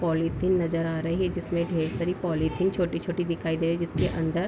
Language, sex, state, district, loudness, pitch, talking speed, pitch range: Hindi, female, Bihar, Darbhanga, -27 LUFS, 170 Hz, 215 wpm, 165-175 Hz